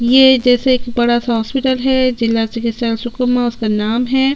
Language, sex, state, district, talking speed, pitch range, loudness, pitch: Hindi, female, Chhattisgarh, Sukma, 165 wpm, 230-255 Hz, -15 LUFS, 240 Hz